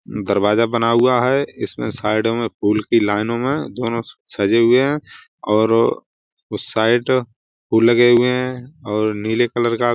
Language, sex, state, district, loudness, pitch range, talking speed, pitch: Hindi, male, Uttar Pradesh, Budaun, -18 LUFS, 110-125 Hz, 165 wpm, 115 Hz